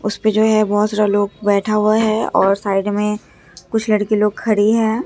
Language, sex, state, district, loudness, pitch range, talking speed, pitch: Hindi, male, Bihar, Katihar, -16 LUFS, 205-215 Hz, 215 wpm, 210 Hz